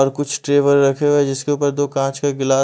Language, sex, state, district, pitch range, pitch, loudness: Hindi, male, Odisha, Malkangiri, 135-145 Hz, 140 Hz, -17 LUFS